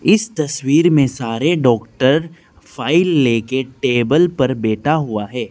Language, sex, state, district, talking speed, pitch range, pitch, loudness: Hindi, male, Arunachal Pradesh, Lower Dibang Valley, 130 wpm, 120-160 Hz, 135 Hz, -16 LUFS